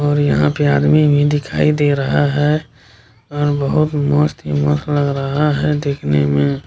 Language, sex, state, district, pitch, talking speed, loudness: Hindi, male, Bihar, Kishanganj, 140 Hz, 170 wpm, -16 LUFS